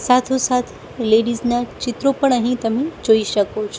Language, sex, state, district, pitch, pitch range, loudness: Gujarati, female, Gujarat, Gandhinagar, 240 Hz, 225-255 Hz, -18 LUFS